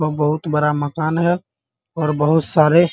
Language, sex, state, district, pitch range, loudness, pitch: Hindi, male, Bihar, Muzaffarpur, 150-160 Hz, -18 LUFS, 155 Hz